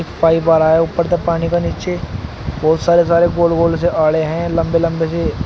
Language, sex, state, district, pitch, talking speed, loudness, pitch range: Hindi, male, Uttar Pradesh, Shamli, 165 Hz, 220 wpm, -15 LUFS, 160-170 Hz